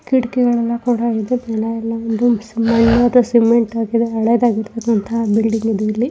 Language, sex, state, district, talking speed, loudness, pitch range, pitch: Kannada, female, Karnataka, Belgaum, 120 wpm, -16 LUFS, 225-240 Hz, 230 Hz